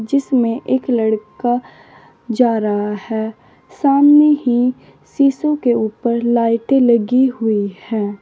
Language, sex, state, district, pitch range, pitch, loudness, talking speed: Hindi, female, Uttar Pradesh, Saharanpur, 220-260 Hz, 235 Hz, -16 LUFS, 110 wpm